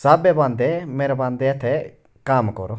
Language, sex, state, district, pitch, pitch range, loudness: Hindi, male, Himachal Pradesh, Shimla, 135 Hz, 125-145 Hz, -20 LUFS